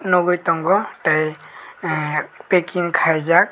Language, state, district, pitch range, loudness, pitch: Kokborok, Tripura, West Tripura, 155-180 Hz, -19 LUFS, 170 Hz